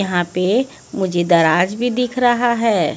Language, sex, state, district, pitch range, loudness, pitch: Hindi, female, Haryana, Rohtak, 175-245 Hz, -17 LUFS, 210 Hz